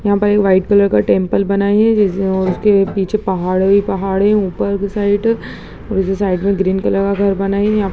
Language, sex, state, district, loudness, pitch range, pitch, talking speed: Hindi, female, Bihar, Gaya, -15 LUFS, 190-205 Hz, 200 Hz, 210 wpm